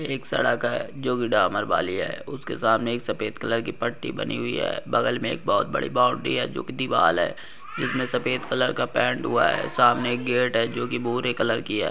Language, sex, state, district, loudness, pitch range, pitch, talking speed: Hindi, male, Uttar Pradesh, Jyotiba Phule Nagar, -24 LUFS, 120-125 Hz, 120 Hz, 220 wpm